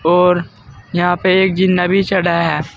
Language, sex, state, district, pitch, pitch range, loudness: Hindi, male, Uttar Pradesh, Saharanpur, 175 Hz, 165-185 Hz, -14 LUFS